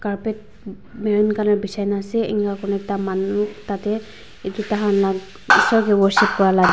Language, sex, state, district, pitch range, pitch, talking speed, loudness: Nagamese, female, Nagaland, Dimapur, 200-215 Hz, 205 Hz, 160 wpm, -20 LUFS